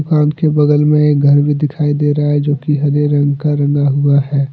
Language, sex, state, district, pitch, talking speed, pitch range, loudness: Hindi, male, Jharkhand, Deoghar, 145 Hz, 250 wpm, 145-150 Hz, -13 LUFS